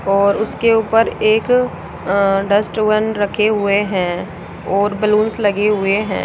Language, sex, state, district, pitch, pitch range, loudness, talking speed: Hindi, female, Rajasthan, Jaipur, 210 Hz, 200-215 Hz, -16 LUFS, 135 wpm